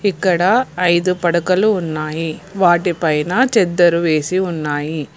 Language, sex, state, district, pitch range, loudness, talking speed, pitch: Telugu, female, Telangana, Hyderabad, 160-185 Hz, -16 LUFS, 105 wpm, 175 Hz